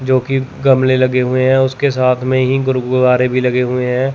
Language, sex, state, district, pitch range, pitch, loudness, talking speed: Hindi, male, Chandigarh, Chandigarh, 125-130 Hz, 130 Hz, -14 LUFS, 215 wpm